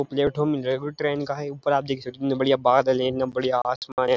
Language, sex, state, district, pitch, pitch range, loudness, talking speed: Hindi, male, Uttarakhand, Uttarkashi, 135 Hz, 130-140 Hz, -24 LUFS, 260 wpm